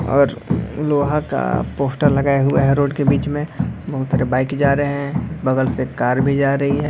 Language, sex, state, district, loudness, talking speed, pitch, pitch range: Hindi, male, Jharkhand, Jamtara, -18 LUFS, 190 wpm, 140 Hz, 135-145 Hz